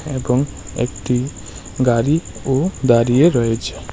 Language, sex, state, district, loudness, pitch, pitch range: Bengali, male, Tripura, West Tripura, -18 LUFS, 125 Hz, 115-135 Hz